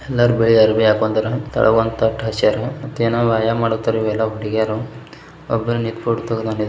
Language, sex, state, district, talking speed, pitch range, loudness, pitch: Kannada, male, Karnataka, Bijapur, 145 wpm, 110-115 Hz, -18 LUFS, 115 Hz